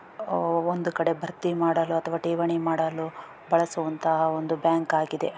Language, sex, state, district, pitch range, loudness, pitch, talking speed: Kannada, female, Karnataka, Raichur, 160-170 Hz, -26 LUFS, 165 Hz, 120 wpm